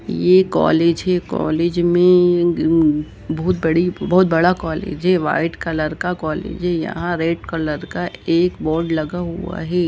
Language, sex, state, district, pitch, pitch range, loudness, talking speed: Hindi, male, Jharkhand, Jamtara, 170 Hz, 160-180 Hz, -18 LUFS, 150 wpm